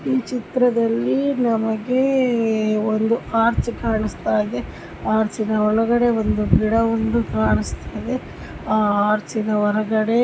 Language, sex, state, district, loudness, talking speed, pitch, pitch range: Kannada, female, Karnataka, Mysore, -20 LUFS, 80 wpm, 220 Hz, 215-235 Hz